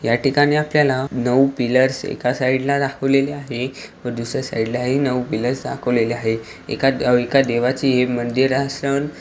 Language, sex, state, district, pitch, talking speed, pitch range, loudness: Marathi, male, Maharashtra, Aurangabad, 130 Hz, 155 wpm, 120-140 Hz, -19 LUFS